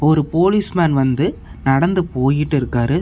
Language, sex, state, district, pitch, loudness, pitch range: Tamil, male, Tamil Nadu, Namakkal, 150 Hz, -17 LUFS, 135-170 Hz